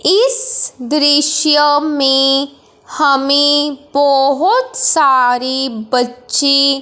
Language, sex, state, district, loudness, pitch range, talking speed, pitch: Hindi, male, Punjab, Fazilka, -12 LUFS, 270-300 Hz, 60 wpm, 280 Hz